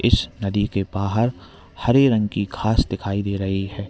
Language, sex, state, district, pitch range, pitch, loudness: Hindi, male, Uttar Pradesh, Lalitpur, 95-110 Hz, 100 Hz, -21 LUFS